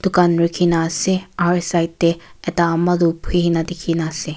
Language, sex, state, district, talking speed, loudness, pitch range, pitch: Nagamese, female, Nagaland, Kohima, 205 wpm, -18 LUFS, 165-175 Hz, 170 Hz